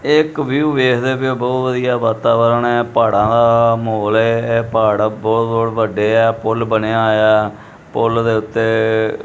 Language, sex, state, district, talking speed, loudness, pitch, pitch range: Punjabi, male, Punjab, Kapurthala, 170 wpm, -15 LUFS, 115 Hz, 110-120 Hz